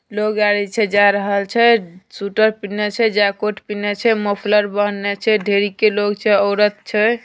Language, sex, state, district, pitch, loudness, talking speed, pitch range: Angika, female, Bihar, Begusarai, 205 Hz, -17 LUFS, 175 wpm, 205-215 Hz